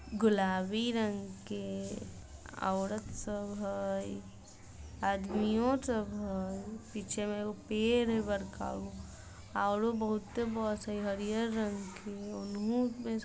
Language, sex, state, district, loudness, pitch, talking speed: Maithili, female, Bihar, Samastipur, -35 LUFS, 205 Hz, 110 wpm